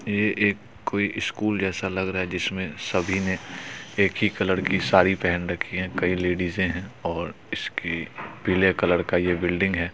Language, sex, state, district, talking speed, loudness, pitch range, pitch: Hindi, male, Bihar, Supaul, 180 wpm, -24 LUFS, 90-95 Hz, 95 Hz